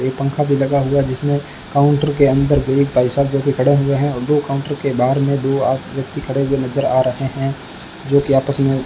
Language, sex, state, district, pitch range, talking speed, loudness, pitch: Hindi, male, Rajasthan, Bikaner, 135-140 Hz, 255 wpm, -17 LUFS, 140 Hz